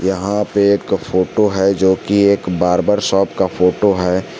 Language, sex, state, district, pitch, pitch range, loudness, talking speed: Hindi, male, Jharkhand, Garhwa, 95 Hz, 95-100 Hz, -15 LUFS, 175 wpm